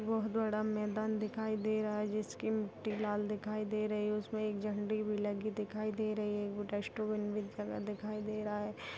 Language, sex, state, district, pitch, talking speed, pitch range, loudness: Hindi, female, Bihar, Begusarai, 215 Hz, 205 wpm, 210-215 Hz, -37 LUFS